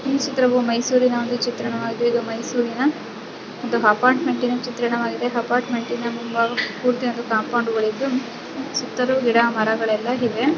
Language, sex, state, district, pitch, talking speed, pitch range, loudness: Kannada, female, Karnataka, Mysore, 240 Hz, 120 wpm, 235-250 Hz, -21 LUFS